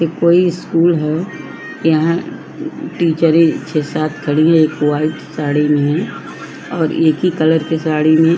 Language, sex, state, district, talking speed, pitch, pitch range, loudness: Hindi, female, Maharashtra, Chandrapur, 155 wpm, 160 Hz, 155-170 Hz, -15 LUFS